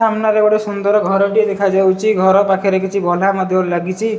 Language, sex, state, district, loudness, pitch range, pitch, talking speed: Odia, male, Odisha, Malkangiri, -15 LUFS, 190-215 Hz, 200 Hz, 145 wpm